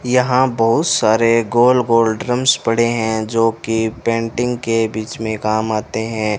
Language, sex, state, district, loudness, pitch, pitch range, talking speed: Hindi, male, Rajasthan, Bikaner, -16 LUFS, 115 Hz, 110-120 Hz, 160 wpm